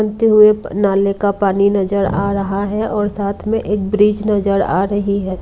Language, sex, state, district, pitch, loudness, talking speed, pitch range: Hindi, female, Punjab, Kapurthala, 200 Hz, -15 LUFS, 175 wpm, 195-210 Hz